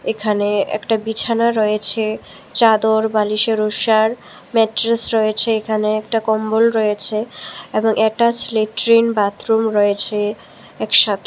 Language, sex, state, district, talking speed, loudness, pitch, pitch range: Bengali, female, Tripura, West Tripura, 100 wpm, -16 LUFS, 220 Hz, 215-225 Hz